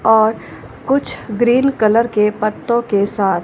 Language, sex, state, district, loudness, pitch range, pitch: Hindi, female, Punjab, Fazilka, -16 LUFS, 210-240 Hz, 220 Hz